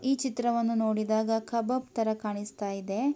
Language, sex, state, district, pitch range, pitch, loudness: Kannada, female, Karnataka, Mysore, 215-245 Hz, 225 Hz, -30 LUFS